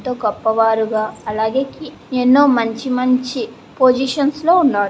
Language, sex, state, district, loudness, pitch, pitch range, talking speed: Telugu, female, Andhra Pradesh, Srikakulam, -16 LUFS, 250 Hz, 220-270 Hz, 120 wpm